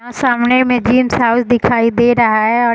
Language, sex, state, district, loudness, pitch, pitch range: Hindi, female, Bihar, East Champaran, -13 LUFS, 240 Hz, 235-245 Hz